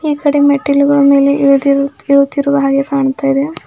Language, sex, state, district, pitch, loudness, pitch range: Kannada, female, Karnataka, Bidar, 280 Hz, -12 LUFS, 275-285 Hz